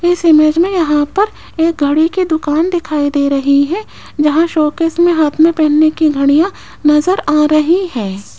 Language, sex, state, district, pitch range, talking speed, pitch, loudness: Hindi, female, Rajasthan, Jaipur, 300-340 Hz, 185 wpm, 310 Hz, -12 LUFS